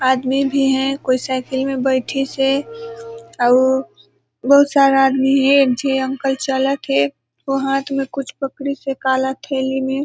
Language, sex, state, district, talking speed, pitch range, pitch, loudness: Hindi, female, Chhattisgarh, Balrampur, 165 wpm, 260-275 Hz, 265 Hz, -17 LUFS